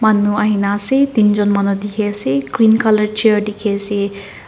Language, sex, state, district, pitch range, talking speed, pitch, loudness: Nagamese, female, Nagaland, Dimapur, 200-215 Hz, 145 wpm, 210 Hz, -15 LUFS